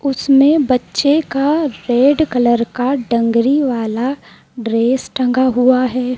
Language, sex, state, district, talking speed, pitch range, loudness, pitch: Hindi, female, Madhya Pradesh, Dhar, 115 wpm, 240-275 Hz, -15 LUFS, 255 Hz